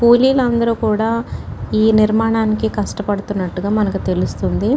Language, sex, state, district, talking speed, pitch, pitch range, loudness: Telugu, female, Telangana, Nalgonda, 90 wpm, 220 Hz, 210-230 Hz, -17 LUFS